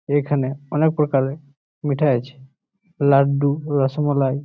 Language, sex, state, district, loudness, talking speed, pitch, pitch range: Bengali, male, West Bengal, Malda, -20 LUFS, 95 wpm, 140 Hz, 135-150 Hz